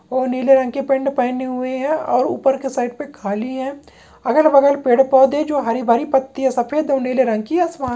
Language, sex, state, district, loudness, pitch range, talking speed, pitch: Hindi, male, Maharashtra, Pune, -17 LUFS, 255-280 Hz, 225 wpm, 265 Hz